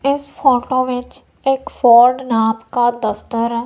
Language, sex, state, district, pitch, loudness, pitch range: Hindi, female, Punjab, Kapurthala, 245 Hz, -16 LUFS, 235-260 Hz